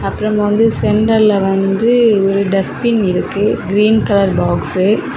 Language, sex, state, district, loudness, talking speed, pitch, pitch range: Tamil, female, Tamil Nadu, Kanyakumari, -13 LUFS, 130 wpm, 205 Hz, 195-220 Hz